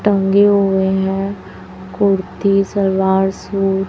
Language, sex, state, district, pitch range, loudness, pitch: Hindi, female, Chhattisgarh, Raipur, 190-200 Hz, -15 LUFS, 195 Hz